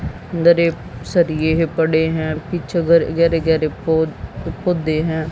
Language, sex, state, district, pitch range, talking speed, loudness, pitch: Hindi, female, Haryana, Jhajjar, 160-170 Hz, 125 wpm, -18 LUFS, 160 Hz